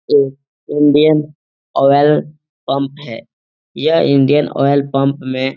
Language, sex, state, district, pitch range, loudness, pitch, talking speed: Hindi, male, Bihar, Supaul, 135-150 Hz, -14 LUFS, 140 Hz, 120 wpm